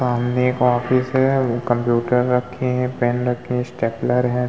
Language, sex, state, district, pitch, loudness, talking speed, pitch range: Hindi, male, Uttar Pradesh, Hamirpur, 125 Hz, -19 LUFS, 160 wpm, 120-125 Hz